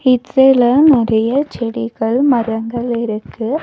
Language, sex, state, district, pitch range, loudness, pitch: Tamil, female, Tamil Nadu, Nilgiris, 230-265 Hz, -14 LUFS, 240 Hz